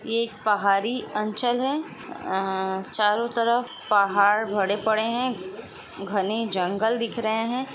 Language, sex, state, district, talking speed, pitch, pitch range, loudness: Hindi, female, Chhattisgarh, Sukma, 130 wpm, 220 Hz, 200-235 Hz, -24 LUFS